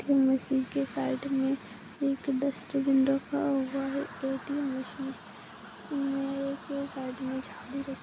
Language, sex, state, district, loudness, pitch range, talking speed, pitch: Hindi, female, Bihar, Jahanabad, -31 LUFS, 265-275 Hz, 135 wpm, 270 Hz